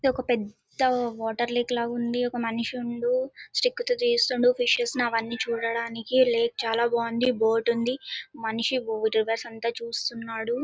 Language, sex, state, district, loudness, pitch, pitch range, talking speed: Telugu, female, Andhra Pradesh, Anantapur, -26 LUFS, 235 Hz, 230-250 Hz, 140 wpm